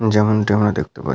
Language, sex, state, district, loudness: Bengali, male, West Bengal, Paschim Medinipur, -17 LUFS